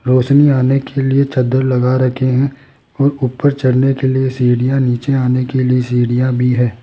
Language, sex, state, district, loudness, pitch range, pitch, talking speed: Hindi, male, Rajasthan, Jaipur, -14 LUFS, 125-135 Hz, 130 Hz, 185 wpm